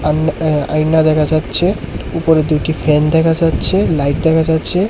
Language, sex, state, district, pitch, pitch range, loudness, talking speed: Bengali, male, Tripura, West Tripura, 155 Hz, 150-160 Hz, -14 LUFS, 135 wpm